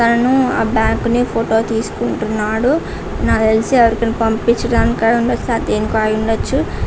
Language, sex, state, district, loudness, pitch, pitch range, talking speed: Telugu, female, Andhra Pradesh, Guntur, -16 LUFS, 225 Hz, 220-235 Hz, 115 wpm